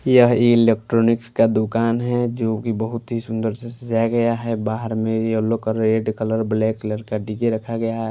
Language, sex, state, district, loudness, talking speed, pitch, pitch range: Hindi, male, Maharashtra, Washim, -20 LUFS, 200 wpm, 115 Hz, 110-115 Hz